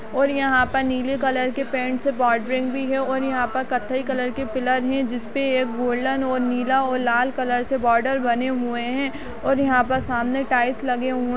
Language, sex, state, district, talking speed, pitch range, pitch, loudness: Kumaoni, female, Uttarakhand, Uttarkashi, 220 wpm, 245-265 Hz, 255 Hz, -22 LUFS